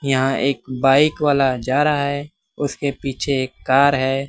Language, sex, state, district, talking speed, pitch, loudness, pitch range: Hindi, male, Bihar, West Champaran, 170 wpm, 135 Hz, -19 LUFS, 130-145 Hz